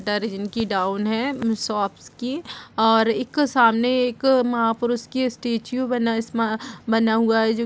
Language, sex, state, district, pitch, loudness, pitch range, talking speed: Hindi, female, Uttar Pradesh, Jalaun, 230 Hz, -22 LUFS, 220-245 Hz, 165 wpm